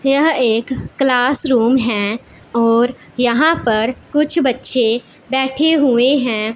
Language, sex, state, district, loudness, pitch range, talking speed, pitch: Hindi, female, Punjab, Pathankot, -15 LUFS, 235-275 Hz, 120 wpm, 250 Hz